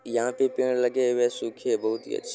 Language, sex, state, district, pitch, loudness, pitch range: Hindi, male, Bihar, Supaul, 125 Hz, -26 LUFS, 120-130 Hz